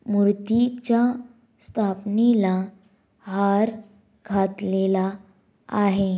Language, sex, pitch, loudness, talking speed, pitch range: Marathi, female, 205 Hz, -23 LUFS, 50 wpm, 195-225 Hz